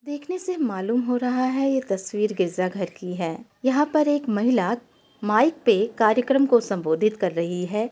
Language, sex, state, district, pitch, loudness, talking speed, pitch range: Hindi, female, Uttar Pradesh, Etah, 235 Hz, -23 LUFS, 180 wpm, 195-270 Hz